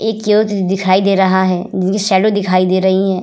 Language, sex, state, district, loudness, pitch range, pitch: Hindi, female, Bihar, Vaishali, -13 LUFS, 185-200 Hz, 190 Hz